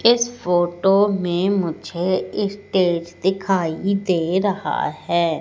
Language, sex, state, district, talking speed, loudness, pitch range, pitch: Hindi, female, Madhya Pradesh, Katni, 100 wpm, -20 LUFS, 175-200 Hz, 185 Hz